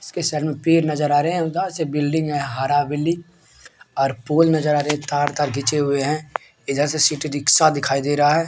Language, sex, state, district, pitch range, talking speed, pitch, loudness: Maithili, male, Bihar, Supaul, 145-160 Hz, 235 wpm, 150 Hz, -20 LUFS